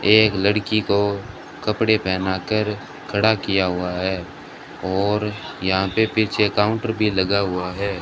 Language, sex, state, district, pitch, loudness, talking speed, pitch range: Hindi, male, Rajasthan, Bikaner, 100 Hz, -21 LUFS, 140 wpm, 95-105 Hz